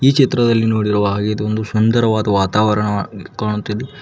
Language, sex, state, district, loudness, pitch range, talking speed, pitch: Kannada, male, Karnataka, Koppal, -16 LUFS, 105-115 Hz, 135 wpm, 105 Hz